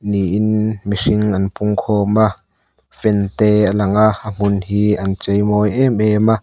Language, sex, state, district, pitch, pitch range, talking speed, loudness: Mizo, male, Mizoram, Aizawl, 105 Hz, 100-110 Hz, 185 wpm, -16 LUFS